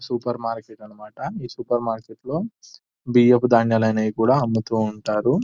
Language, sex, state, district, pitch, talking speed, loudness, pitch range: Telugu, male, Telangana, Nalgonda, 115 Hz, 145 wpm, -21 LUFS, 110-130 Hz